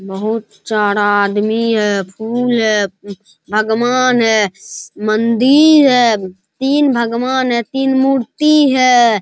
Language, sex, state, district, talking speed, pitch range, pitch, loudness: Hindi, male, Bihar, Araria, 105 wpm, 210-255 Hz, 225 Hz, -13 LUFS